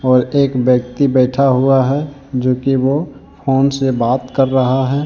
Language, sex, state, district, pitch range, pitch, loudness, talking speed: Hindi, male, Jharkhand, Deoghar, 130-140 Hz, 135 Hz, -15 LUFS, 175 wpm